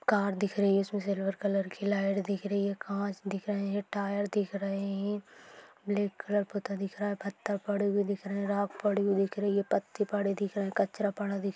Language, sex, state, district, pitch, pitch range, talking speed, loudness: Hindi, male, Maharashtra, Nagpur, 200 Hz, 200-205 Hz, 245 wpm, -32 LUFS